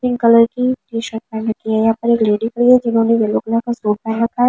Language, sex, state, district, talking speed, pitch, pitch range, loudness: Hindi, female, Delhi, New Delhi, 280 wpm, 230 Hz, 225-240 Hz, -16 LUFS